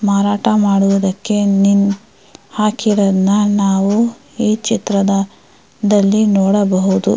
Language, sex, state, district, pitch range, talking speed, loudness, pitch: Kannada, female, Karnataka, Mysore, 195-210 Hz, 50 wpm, -14 LUFS, 205 Hz